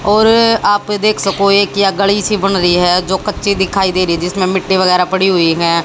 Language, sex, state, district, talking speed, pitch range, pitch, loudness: Hindi, female, Haryana, Jhajjar, 225 wpm, 185-205 Hz, 195 Hz, -12 LUFS